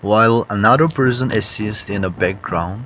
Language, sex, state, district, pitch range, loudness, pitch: English, male, Nagaland, Kohima, 100-115 Hz, -17 LUFS, 105 Hz